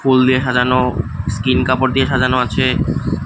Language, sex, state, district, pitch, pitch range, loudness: Bengali, male, Tripura, West Tripura, 130 Hz, 125-130 Hz, -15 LUFS